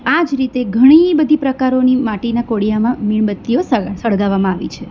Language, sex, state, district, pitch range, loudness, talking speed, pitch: Gujarati, female, Gujarat, Valsad, 215-260 Hz, -14 LUFS, 160 wpm, 240 Hz